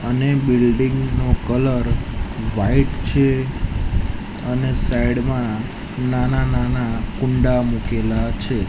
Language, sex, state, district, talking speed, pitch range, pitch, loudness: Gujarati, male, Gujarat, Gandhinagar, 95 wpm, 115-130 Hz, 125 Hz, -20 LUFS